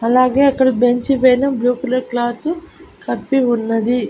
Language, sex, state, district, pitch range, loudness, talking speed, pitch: Telugu, female, Andhra Pradesh, Annamaya, 240-270 Hz, -16 LUFS, 130 wpm, 255 Hz